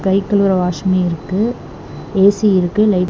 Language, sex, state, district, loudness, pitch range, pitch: Tamil, female, Tamil Nadu, Namakkal, -15 LUFS, 180-200 Hz, 190 Hz